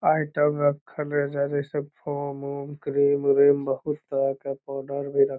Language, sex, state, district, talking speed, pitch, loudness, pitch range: Magahi, male, Bihar, Lakhisarai, 165 wpm, 140 Hz, -25 LUFS, 140-145 Hz